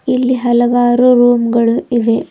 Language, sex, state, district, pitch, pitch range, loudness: Kannada, female, Karnataka, Bidar, 240 Hz, 235-245 Hz, -12 LUFS